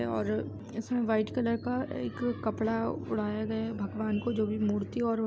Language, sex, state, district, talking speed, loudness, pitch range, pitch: Hindi, female, Bihar, Samastipur, 195 wpm, -32 LUFS, 210-235 Hz, 220 Hz